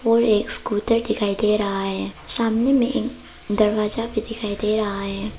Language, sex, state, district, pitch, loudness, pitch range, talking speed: Hindi, female, Arunachal Pradesh, Papum Pare, 215 Hz, -20 LUFS, 205-230 Hz, 180 wpm